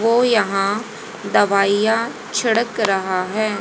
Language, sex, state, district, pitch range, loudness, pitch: Hindi, female, Haryana, Jhajjar, 200-230 Hz, -18 LUFS, 215 Hz